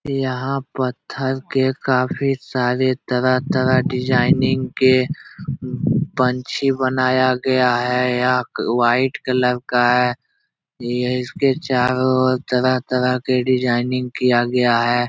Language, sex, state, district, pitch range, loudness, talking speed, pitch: Hindi, male, Bihar, Jahanabad, 125-130 Hz, -19 LUFS, 105 wpm, 125 Hz